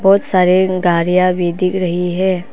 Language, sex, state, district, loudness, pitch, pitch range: Hindi, female, Arunachal Pradesh, Papum Pare, -14 LUFS, 185 Hz, 180-190 Hz